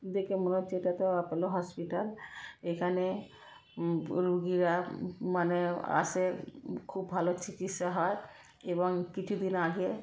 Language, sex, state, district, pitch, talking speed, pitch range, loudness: Bengali, female, West Bengal, Kolkata, 180 Hz, 125 wpm, 175-185 Hz, -33 LUFS